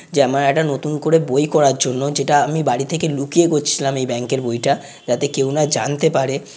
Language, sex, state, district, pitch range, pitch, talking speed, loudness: Bengali, male, West Bengal, North 24 Parganas, 135-150 Hz, 140 Hz, 210 wpm, -18 LUFS